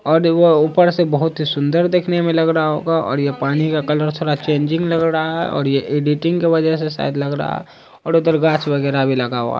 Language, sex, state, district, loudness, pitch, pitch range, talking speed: Hindi, male, Bihar, Saharsa, -17 LUFS, 155 Hz, 145-165 Hz, 245 wpm